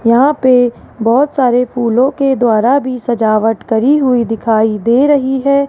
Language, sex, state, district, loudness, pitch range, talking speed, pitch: Hindi, female, Rajasthan, Jaipur, -12 LUFS, 230-270 Hz, 160 wpm, 245 Hz